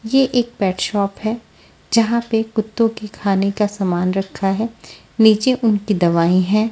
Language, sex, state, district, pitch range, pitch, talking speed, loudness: Hindi, female, Punjab, Fazilka, 195-225 Hz, 215 Hz, 160 wpm, -18 LUFS